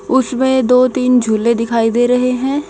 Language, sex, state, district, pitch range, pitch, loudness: Hindi, female, Haryana, Jhajjar, 235-260 Hz, 250 Hz, -14 LUFS